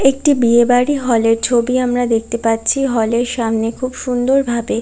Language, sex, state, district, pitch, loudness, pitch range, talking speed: Bengali, female, West Bengal, Kolkata, 240 Hz, -15 LUFS, 230-255 Hz, 150 wpm